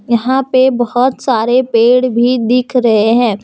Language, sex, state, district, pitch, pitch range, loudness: Hindi, female, Jharkhand, Deoghar, 245 Hz, 235-255 Hz, -12 LUFS